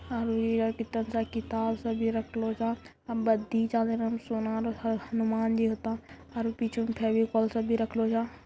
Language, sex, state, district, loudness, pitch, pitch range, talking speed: Angika, female, Bihar, Bhagalpur, -30 LUFS, 225 Hz, 225-230 Hz, 165 wpm